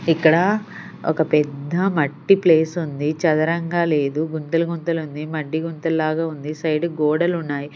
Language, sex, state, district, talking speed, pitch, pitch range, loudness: Telugu, female, Andhra Pradesh, Sri Satya Sai, 140 wpm, 160 Hz, 150-170 Hz, -20 LUFS